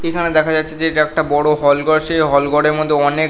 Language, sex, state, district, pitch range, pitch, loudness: Bengali, male, West Bengal, North 24 Parganas, 150-155 Hz, 155 Hz, -15 LUFS